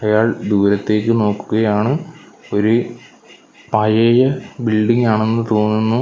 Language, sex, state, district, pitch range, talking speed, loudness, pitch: Malayalam, male, Kerala, Kollam, 105-115 Hz, 80 wpm, -16 LUFS, 110 Hz